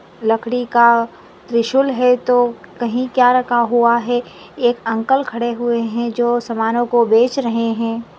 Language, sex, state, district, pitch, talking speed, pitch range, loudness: Hindi, female, Maharashtra, Nagpur, 235 Hz, 155 wpm, 230-245 Hz, -16 LUFS